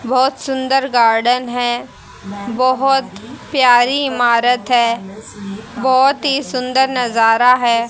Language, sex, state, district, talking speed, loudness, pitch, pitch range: Hindi, female, Haryana, Charkhi Dadri, 100 wpm, -15 LUFS, 250 Hz, 235-265 Hz